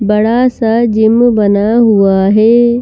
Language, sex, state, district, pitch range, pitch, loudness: Hindi, female, Madhya Pradesh, Bhopal, 210-235 Hz, 225 Hz, -9 LUFS